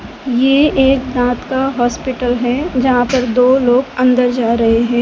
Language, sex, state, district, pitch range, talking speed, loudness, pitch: Hindi, female, Gujarat, Gandhinagar, 245-260 Hz, 165 wpm, -14 LUFS, 250 Hz